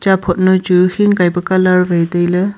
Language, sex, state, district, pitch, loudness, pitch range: Wancho, female, Arunachal Pradesh, Longding, 185 Hz, -13 LUFS, 175-190 Hz